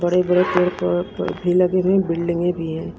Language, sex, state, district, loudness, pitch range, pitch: Hindi, female, Punjab, Kapurthala, -19 LUFS, 170-180 Hz, 180 Hz